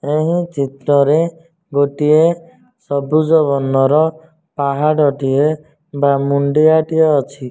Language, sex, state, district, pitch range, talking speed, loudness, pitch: Odia, male, Odisha, Nuapada, 140-160 Hz, 90 wpm, -15 LUFS, 150 Hz